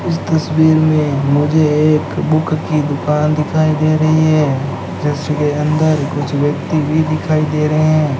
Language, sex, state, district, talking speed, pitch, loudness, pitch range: Hindi, male, Rajasthan, Bikaner, 155 wpm, 155 Hz, -14 LUFS, 145-155 Hz